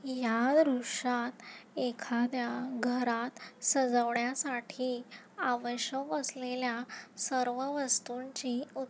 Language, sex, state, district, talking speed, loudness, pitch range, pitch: Marathi, female, Maharashtra, Nagpur, 65 wpm, -33 LUFS, 240-260 Hz, 250 Hz